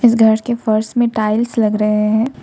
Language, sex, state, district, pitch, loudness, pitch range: Hindi, female, Jharkhand, Ranchi, 220 Hz, -15 LUFS, 215-235 Hz